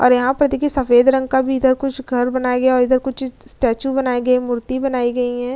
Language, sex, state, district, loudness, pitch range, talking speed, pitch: Hindi, female, Bihar, Vaishali, -17 LUFS, 250-265 Hz, 270 wpm, 255 Hz